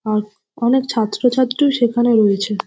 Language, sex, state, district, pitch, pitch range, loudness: Bengali, female, West Bengal, North 24 Parganas, 235 Hz, 210-255 Hz, -16 LUFS